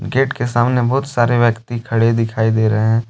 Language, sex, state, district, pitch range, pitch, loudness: Hindi, male, Jharkhand, Deoghar, 115-125 Hz, 120 Hz, -16 LUFS